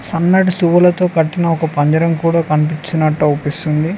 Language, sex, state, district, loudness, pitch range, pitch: Telugu, male, Telangana, Mahabubabad, -14 LUFS, 155-170 Hz, 165 Hz